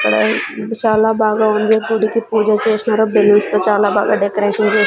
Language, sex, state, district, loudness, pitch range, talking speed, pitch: Telugu, female, Andhra Pradesh, Sri Satya Sai, -14 LUFS, 205-220 Hz, 160 wpm, 215 Hz